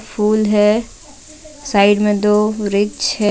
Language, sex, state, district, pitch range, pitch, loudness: Hindi, female, Jharkhand, Deoghar, 210-220 Hz, 210 Hz, -15 LUFS